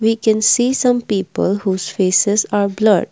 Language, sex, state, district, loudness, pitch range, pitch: English, female, Assam, Kamrup Metropolitan, -16 LUFS, 195-225 Hz, 205 Hz